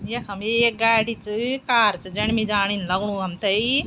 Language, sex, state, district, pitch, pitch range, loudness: Garhwali, female, Uttarakhand, Tehri Garhwal, 215 Hz, 200-230 Hz, -21 LUFS